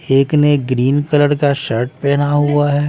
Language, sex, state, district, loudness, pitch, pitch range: Hindi, female, Bihar, West Champaran, -15 LUFS, 145 Hz, 135-145 Hz